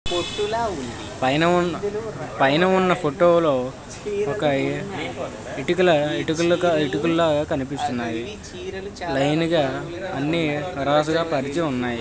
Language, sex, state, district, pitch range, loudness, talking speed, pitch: Telugu, male, Andhra Pradesh, Visakhapatnam, 135-175 Hz, -22 LUFS, 85 wpm, 160 Hz